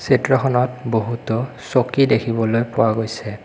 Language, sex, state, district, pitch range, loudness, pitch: Assamese, male, Assam, Kamrup Metropolitan, 110-130 Hz, -19 LUFS, 115 Hz